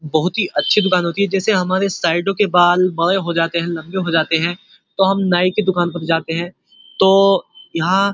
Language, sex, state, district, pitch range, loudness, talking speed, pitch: Hindi, male, Uttar Pradesh, Muzaffarnagar, 170-195 Hz, -16 LUFS, 200 wpm, 180 Hz